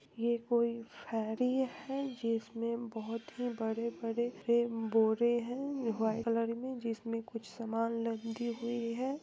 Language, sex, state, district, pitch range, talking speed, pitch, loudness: Hindi, female, Bihar, East Champaran, 230-240 Hz, 115 wpm, 230 Hz, -35 LUFS